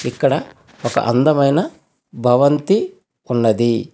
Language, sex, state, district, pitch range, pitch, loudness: Telugu, male, Telangana, Hyderabad, 120-145 Hz, 130 Hz, -17 LUFS